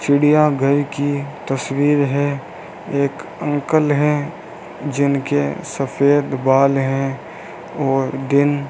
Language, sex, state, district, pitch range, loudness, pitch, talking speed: Hindi, male, Rajasthan, Bikaner, 135-145 Hz, -18 LUFS, 140 Hz, 95 wpm